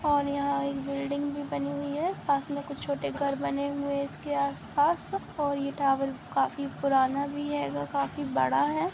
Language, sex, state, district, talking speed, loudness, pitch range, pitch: Hindi, female, Maharashtra, Solapur, 190 wpm, -29 LUFS, 275-285 Hz, 280 Hz